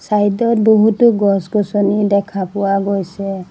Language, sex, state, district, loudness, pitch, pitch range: Assamese, female, Assam, Sonitpur, -15 LUFS, 200 Hz, 195-215 Hz